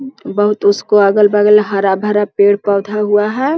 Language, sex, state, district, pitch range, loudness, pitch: Hindi, female, Bihar, Jahanabad, 200-210 Hz, -12 LUFS, 205 Hz